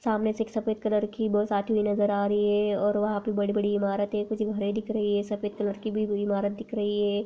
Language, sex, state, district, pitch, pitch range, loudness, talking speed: Hindi, female, Rajasthan, Nagaur, 210 Hz, 205-215 Hz, -27 LUFS, 255 wpm